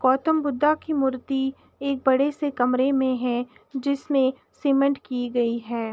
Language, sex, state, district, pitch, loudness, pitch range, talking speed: Hindi, female, Uttar Pradesh, Jalaun, 265 Hz, -24 LUFS, 250-280 Hz, 160 wpm